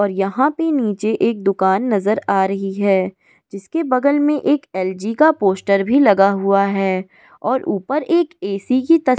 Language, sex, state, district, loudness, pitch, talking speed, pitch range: Hindi, female, Goa, North and South Goa, -17 LUFS, 205 Hz, 195 wpm, 195-280 Hz